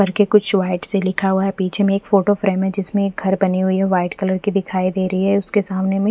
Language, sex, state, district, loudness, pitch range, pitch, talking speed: Hindi, female, Punjab, Fazilka, -18 LUFS, 190-200 Hz, 195 Hz, 295 wpm